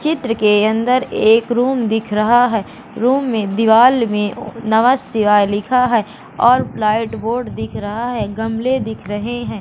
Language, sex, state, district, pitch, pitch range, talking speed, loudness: Hindi, female, Madhya Pradesh, Katni, 225 Hz, 215-245 Hz, 160 wpm, -16 LUFS